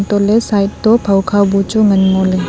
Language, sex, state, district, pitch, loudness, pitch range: Wancho, female, Arunachal Pradesh, Longding, 200 Hz, -12 LUFS, 195-215 Hz